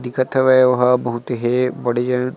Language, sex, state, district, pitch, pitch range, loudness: Chhattisgarhi, male, Chhattisgarh, Sarguja, 125 Hz, 120-130 Hz, -17 LUFS